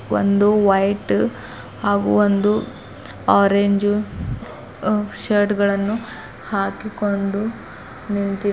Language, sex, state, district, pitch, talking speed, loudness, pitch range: Kannada, female, Karnataka, Bidar, 200 Hz, 75 wpm, -19 LUFS, 195-210 Hz